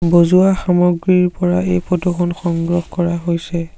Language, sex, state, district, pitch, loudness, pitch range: Assamese, male, Assam, Sonitpur, 175 Hz, -16 LUFS, 170-180 Hz